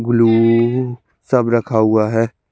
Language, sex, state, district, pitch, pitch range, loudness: Hindi, male, Chandigarh, Chandigarh, 115 Hz, 110-125 Hz, -15 LUFS